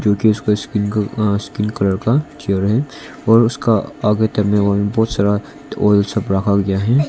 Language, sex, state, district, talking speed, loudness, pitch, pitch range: Hindi, male, Arunachal Pradesh, Longding, 185 wpm, -17 LUFS, 105 Hz, 100-115 Hz